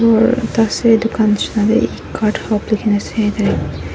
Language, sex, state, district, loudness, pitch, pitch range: Nagamese, female, Nagaland, Dimapur, -16 LUFS, 220 Hz, 210-230 Hz